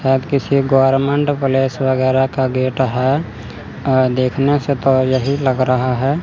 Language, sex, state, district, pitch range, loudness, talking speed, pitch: Hindi, male, Chandigarh, Chandigarh, 130-140 Hz, -16 LUFS, 155 wpm, 135 Hz